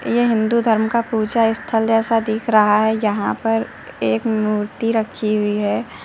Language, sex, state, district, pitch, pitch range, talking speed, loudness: Hindi, female, Uttar Pradesh, Lucknow, 220 Hz, 215-225 Hz, 170 wpm, -18 LUFS